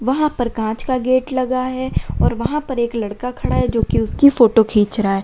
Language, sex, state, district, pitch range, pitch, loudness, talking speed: Hindi, female, Uttar Pradesh, Lalitpur, 220-260 Hz, 250 Hz, -18 LUFS, 240 wpm